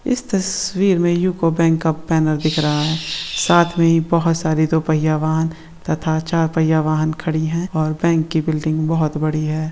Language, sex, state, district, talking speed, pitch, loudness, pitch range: Hindi, female, Maharashtra, Sindhudurg, 180 wpm, 160 Hz, -18 LUFS, 155-170 Hz